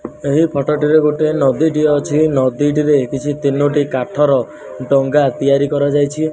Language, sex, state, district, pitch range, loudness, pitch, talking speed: Odia, male, Odisha, Nuapada, 140-150 Hz, -15 LUFS, 145 Hz, 125 wpm